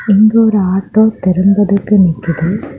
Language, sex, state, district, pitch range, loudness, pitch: Tamil, female, Tamil Nadu, Kanyakumari, 185-215 Hz, -11 LUFS, 200 Hz